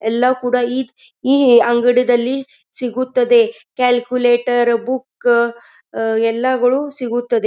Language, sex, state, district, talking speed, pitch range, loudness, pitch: Kannada, female, Karnataka, Gulbarga, 80 wpm, 240-255 Hz, -16 LUFS, 245 Hz